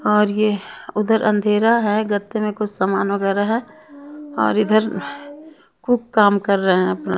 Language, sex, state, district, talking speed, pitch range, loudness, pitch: Hindi, female, Punjab, Kapurthala, 160 wpm, 200-230 Hz, -19 LUFS, 210 Hz